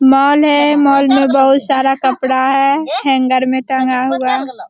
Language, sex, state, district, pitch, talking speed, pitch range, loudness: Hindi, female, Bihar, Jamui, 270 Hz, 155 wpm, 260-275 Hz, -12 LUFS